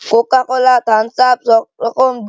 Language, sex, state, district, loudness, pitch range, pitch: Bengali, male, West Bengal, Malda, -13 LUFS, 230-255 Hz, 245 Hz